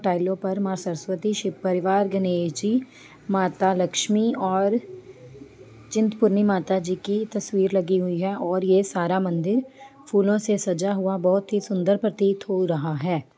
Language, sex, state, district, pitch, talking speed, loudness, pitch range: Hindi, female, Jharkhand, Sahebganj, 190 Hz, 160 wpm, -23 LUFS, 185-205 Hz